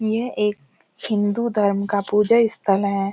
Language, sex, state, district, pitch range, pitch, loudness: Hindi, female, Uttarakhand, Uttarkashi, 200-220 Hz, 210 Hz, -20 LUFS